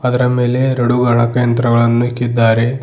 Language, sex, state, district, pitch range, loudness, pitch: Kannada, male, Karnataka, Bidar, 120-125 Hz, -14 LUFS, 120 Hz